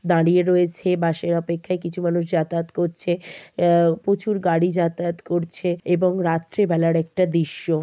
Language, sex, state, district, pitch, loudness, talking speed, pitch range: Bengali, female, West Bengal, Kolkata, 170 Hz, -21 LUFS, 145 wpm, 165-180 Hz